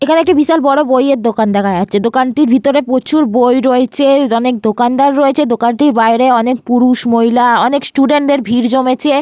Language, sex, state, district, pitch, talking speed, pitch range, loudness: Bengali, female, Jharkhand, Sahebganj, 255 Hz, 170 wpm, 240-280 Hz, -11 LUFS